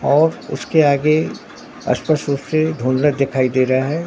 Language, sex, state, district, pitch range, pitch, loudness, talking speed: Hindi, male, Bihar, Katihar, 130-155 Hz, 145 Hz, -17 LUFS, 160 wpm